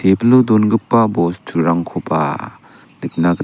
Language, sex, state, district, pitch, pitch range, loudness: Garo, male, Meghalaya, South Garo Hills, 90 Hz, 85-110 Hz, -15 LUFS